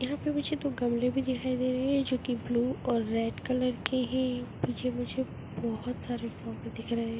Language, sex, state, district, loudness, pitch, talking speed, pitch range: Hindi, female, Chhattisgarh, Korba, -32 LUFS, 245 Hz, 215 wpm, 225-255 Hz